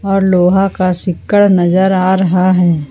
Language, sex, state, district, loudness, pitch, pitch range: Hindi, female, Jharkhand, Ranchi, -11 LUFS, 185 Hz, 180-190 Hz